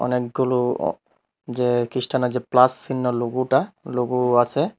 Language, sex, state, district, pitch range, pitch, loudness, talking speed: Bengali, male, Tripura, Unakoti, 125-130 Hz, 125 Hz, -21 LUFS, 125 wpm